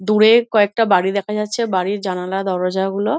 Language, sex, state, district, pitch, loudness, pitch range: Bengali, female, West Bengal, Dakshin Dinajpur, 200 Hz, -17 LUFS, 190-215 Hz